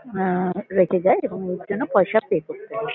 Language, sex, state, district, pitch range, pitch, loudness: Bengali, female, West Bengal, North 24 Parganas, 185-225 Hz, 195 Hz, -22 LUFS